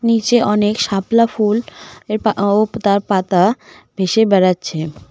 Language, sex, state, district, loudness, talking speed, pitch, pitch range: Bengali, female, West Bengal, Cooch Behar, -16 LUFS, 115 wpm, 210 Hz, 190-220 Hz